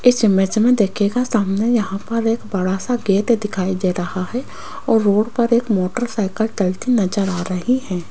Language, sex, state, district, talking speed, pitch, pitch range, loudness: Hindi, female, Rajasthan, Jaipur, 185 wpm, 210 Hz, 190-235 Hz, -18 LUFS